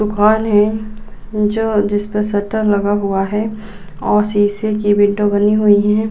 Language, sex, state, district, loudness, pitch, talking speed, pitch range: Hindi, female, Uttar Pradesh, Budaun, -15 LUFS, 210 Hz, 145 wpm, 205-215 Hz